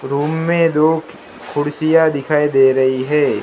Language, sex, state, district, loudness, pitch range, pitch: Hindi, male, Gujarat, Gandhinagar, -15 LUFS, 140-160 Hz, 150 Hz